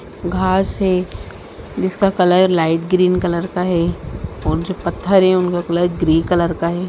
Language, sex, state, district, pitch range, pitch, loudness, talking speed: Hindi, female, Bihar, Sitamarhi, 170-185 Hz, 180 Hz, -17 LUFS, 165 wpm